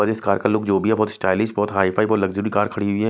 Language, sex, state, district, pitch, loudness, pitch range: Hindi, male, Odisha, Nuapada, 105 Hz, -20 LUFS, 100-110 Hz